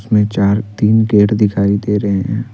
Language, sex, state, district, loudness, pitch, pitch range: Hindi, male, Jharkhand, Deoghar, -14 LUFS, 105 Hz, 100-110 Hz